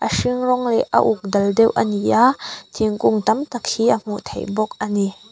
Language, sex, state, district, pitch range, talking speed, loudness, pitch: Mizo, female, Mizoram, Aizawl, 200-240 Hz, 235 wpm, -19 LUFS, 215 Hz